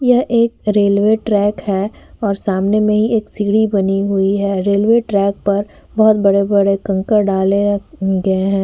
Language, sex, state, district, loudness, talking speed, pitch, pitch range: Hindi, female, Uttar Pradesh, Jyotiba Phule Nagar, -15 LUFS, 160 wpm, 200 Hz, 195-210 Hz